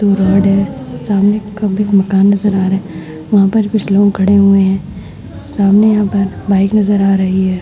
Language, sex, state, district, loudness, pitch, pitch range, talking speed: Hindi, female, Bihar, Vaishali, -12 LUFS, 195 Hz, 195-205 Hz, 205 wpm